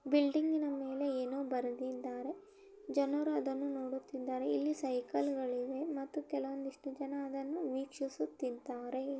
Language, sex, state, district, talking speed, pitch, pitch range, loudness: Kannada, female, Karnataka, Belgaum, 100 wpm, 275 Hz, 260-285 Hz, -38 LUFS